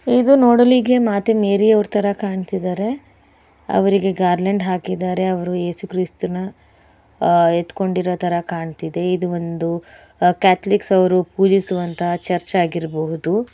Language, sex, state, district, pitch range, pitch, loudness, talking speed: Kannada, female, Karnataka, Bellary, 175-200 Hz, 185 Hz, -18 LUFS, 80 wpm